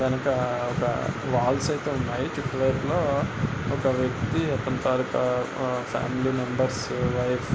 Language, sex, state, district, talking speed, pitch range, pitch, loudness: Telugu, male, Andhra Pradesh, Guntur, 120 wpm, 125-135 Hz, 130 Hz, -26 LUFS